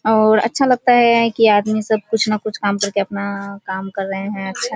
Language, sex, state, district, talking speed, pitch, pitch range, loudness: Hindi, female, Bihar, Kishanganj, 225 wpm, 215 Hz, 200-225 Hz, -17 LUFS